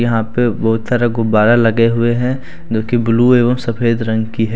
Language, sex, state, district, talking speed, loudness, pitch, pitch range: Hindi, male, Jharkhand, Deoghar, 210 wpm, -14 LUFS, 115 Hz, 115-120 Hz